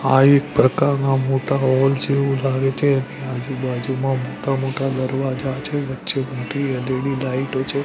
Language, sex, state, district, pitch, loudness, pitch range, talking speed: Gujarati, male, Gujarat, Gandhinagar, 135 Hz, -20 LUFS, 130-140 Hz, 145 wpm